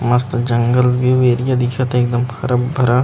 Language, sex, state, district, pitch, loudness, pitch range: Chhattisgarhi, male, Chhattisgarh, Rajnandgaon, 125 Hz, -16 LUFS, 120-125 Hz